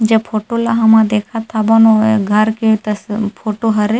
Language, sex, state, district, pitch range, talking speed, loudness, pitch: Chhattisgarhi, female, Chhattisgarh, Rajnandgaon, 215-225 Hz, 180 wpm, -14 LUFS, 220 Hz